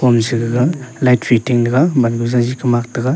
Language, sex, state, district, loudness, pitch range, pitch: Wancho, male, Arunachal Pradesh, Longding, -15 LUFS, 120-130 Hz, 125 Hz